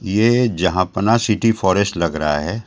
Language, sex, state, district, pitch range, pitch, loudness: Hindi, male, Delhi, New Delhi, 90-115 Hz, 100 Hz, -17 LUFS